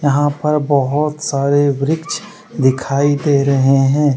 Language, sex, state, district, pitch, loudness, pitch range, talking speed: Hindi, male, Jharkhand, Deoghar, 145 Hz, -15 LUFS, 140-150 Hz, 130 wpm